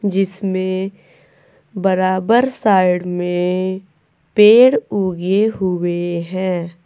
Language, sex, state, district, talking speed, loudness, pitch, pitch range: Hindi, female, Uttar Pradesh, Saharanpur, 70 wpm, -16 LUFS, 185 Hz, 180-195 Hz